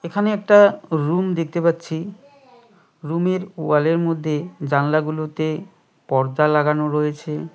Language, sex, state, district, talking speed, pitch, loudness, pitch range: Bengali, male, West Bengal, Cooch Behar, 95 wpm, 160 Hz, -20 LUFS, 150-185 Hz